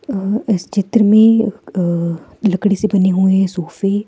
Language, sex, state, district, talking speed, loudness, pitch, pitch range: Hindi, female, Himachal Pradesh, Shimla, 160 wpm, -15 LUFS, 200 Hz, 190-215 Hz